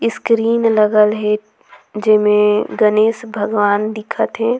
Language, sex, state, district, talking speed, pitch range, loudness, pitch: Surgujia, female, Chhattisgarh, Sarguja, 105 wpm, 210-225 Hz, -15 LUFS, 215 Hz